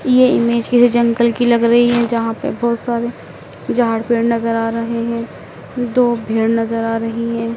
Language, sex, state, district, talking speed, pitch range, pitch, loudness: Hindi, female, Madhya Pradesh, Dhar, 180 wpm, 230-240 Hz, 235 Hz, -16 LUFS